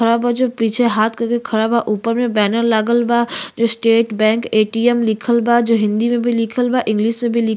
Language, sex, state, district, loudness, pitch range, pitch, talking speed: Bhojpuri, female, Uttar Pradesh, Gorakhpur, -16 LUFS, 220-235 Hz, 230 Hz, 255 wpm